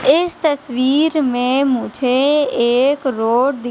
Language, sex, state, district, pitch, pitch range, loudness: Hindi, female, Madhya Pradesh, Katni, 265 Hz, 245-290 Hz, -16 LUFS